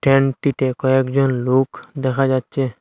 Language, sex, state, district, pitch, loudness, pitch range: Bengali, male, Assam, Hailakandi, 130 Hz, -19 LUFS, 130-135 Hz